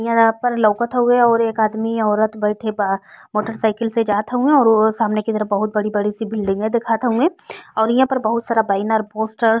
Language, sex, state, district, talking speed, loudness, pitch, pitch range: Bhojpuri, female, Uttar Pradesh, Ghazipur, 200 wpm, -18 LUFS, 220 Hz, 215-230 Hz